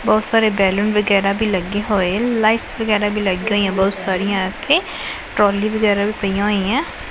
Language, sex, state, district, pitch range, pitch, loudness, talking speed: Punjabi, female, Punjab, Pathankot, 195-215 Hz, 205 Hz, -18 LUFS, 175 wpm